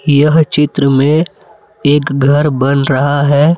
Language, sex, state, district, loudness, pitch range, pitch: Hindi, male, Jharkhand, Palamu, -11 LUFS, 140-155 Hz, 145 Hz